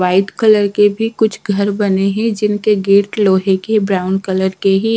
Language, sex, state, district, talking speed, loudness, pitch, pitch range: Hindi, female, Odisha, Sambalpur, 195 wpm, -14 LUFS, 200 Hz, 190-215 Hz